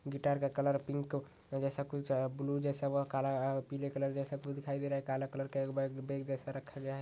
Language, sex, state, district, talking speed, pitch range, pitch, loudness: Hindi, male, Uttar Pradesh, Ghazipur, 240 wpm, 135-140 Hz, 140 Hz, -37 LUFS